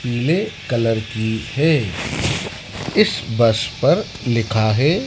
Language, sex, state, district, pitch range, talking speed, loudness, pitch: Hindi, male, Madhya Pradesh, Dhar, 110-155 Hz, 105 wpm, -19 LUFS, 120 Hz